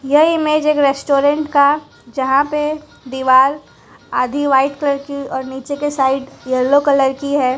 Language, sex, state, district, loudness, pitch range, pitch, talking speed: Hindi, female, Gujarat, Valsad, -16 LUFS, 265-290 Hz, 280 Hz, 160 wpm